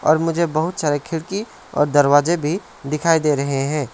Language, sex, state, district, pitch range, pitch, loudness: Hindi, male, West Bengal, Alipurduar, 145-165 Hz, 155 Hz, -19 LUFS